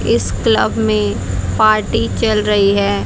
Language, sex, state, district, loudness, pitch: Hindi, female, Haryana, Jhajjar, -15 LUFS, 110 Hz